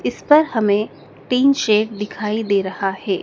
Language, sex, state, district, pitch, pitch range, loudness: Hindi, male, Madhya Pradesh, Dhar, 210 Hz, 200-225 Hz, -18 LUFS